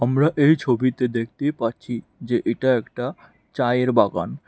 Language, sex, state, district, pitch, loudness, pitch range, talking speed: Bengali, male, Tripura, West Tripura, 125 Hz, -22 LUFS, 120-140 Hz, 135 wpm